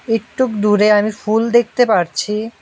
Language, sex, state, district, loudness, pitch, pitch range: Bengali, male, West Bengal, Alipurduar, -15 LUFS, 220 Hz, 210-230 Hz